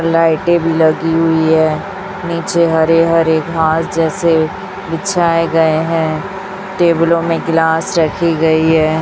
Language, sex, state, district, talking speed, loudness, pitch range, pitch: Hindi, female, Chhattisgarh, Raipur, 125 wpm, -13 LUFS, 160-170 Hz, 165 Hz